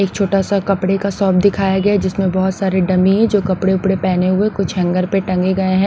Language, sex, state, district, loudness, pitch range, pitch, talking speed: Hindi, female, Punjab, Pathankot, -16 LUFS, 185-195 Hz, 190 Hz, 235 wpm